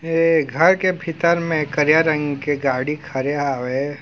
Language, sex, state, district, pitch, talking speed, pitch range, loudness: Chhattisgarhi, male, Chhattisgarh, Raigarh, 150 Hz, 180 wpm, 140-165 Hz, -19 LUFS